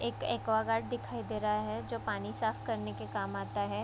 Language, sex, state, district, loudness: Hindi, female, Bihar, Vaishali, -35 LUFS